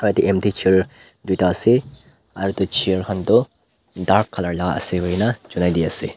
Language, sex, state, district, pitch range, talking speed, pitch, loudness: Nagamese, male, Nagaland, Dimapur, 90-100 Hz, 175 wpm, 95 Hz, -19 LUFS